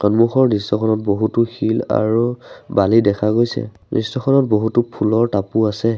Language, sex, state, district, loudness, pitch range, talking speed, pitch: Assamese, male, Assam, Sonitpur, -17 LUFS, 105-115 Hz, 140 wpm, 110 Hz